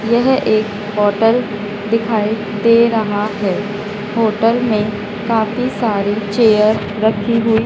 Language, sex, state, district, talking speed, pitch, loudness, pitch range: Hindi, female, Madhya Pradesh, Dhar, 110 wpm, 215 Hz, -16 LUFS, 210-230 Hz